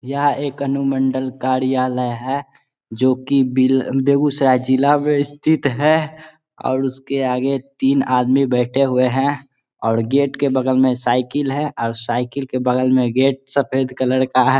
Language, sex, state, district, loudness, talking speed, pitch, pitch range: Hindi, male, Bihar, Begusarai, -18 LUFS, 150 wpm, 130 Hz, 130-140 Hz